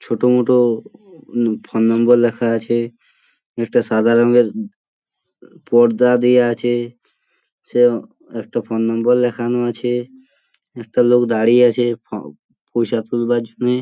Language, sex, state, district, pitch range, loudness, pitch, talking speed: Bengali, male, West Bengal, Purulia, 115-120 Hz, -16 LUFS, 120 Hz, 120 wpm